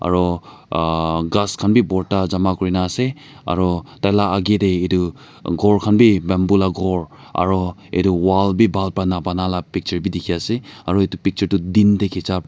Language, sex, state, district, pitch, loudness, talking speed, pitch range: Nagamese, male, Nagaland, Dimapur, 95 Hz, -18 LUFS, 185 wpm, 90-100 Hz